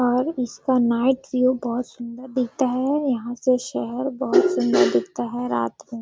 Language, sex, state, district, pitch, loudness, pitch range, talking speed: Hindi, female, Chhattisgarh, Sarguja, 250 Hz, -22 LUFS, 230-260 Hz, 200 wpm